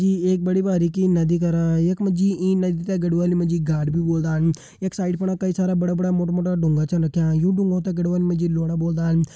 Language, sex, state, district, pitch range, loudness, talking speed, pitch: Hindi, male, Uttarakhand, Uttarkashi, 165-185 Hz, -21 LUFS, 230 wpm, 175 Hz